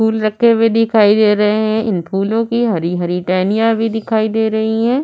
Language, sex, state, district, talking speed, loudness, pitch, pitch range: Hindi, female, Uttar Pradesh, Budaun, 215 wpm, -14 LUFS, 220 Hz, 210-225 Hz